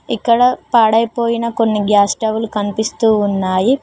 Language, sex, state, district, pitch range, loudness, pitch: Telugu, female, Telangana, Mahabubabad, 210-235 Hz, -15 LUFS, 225 Hz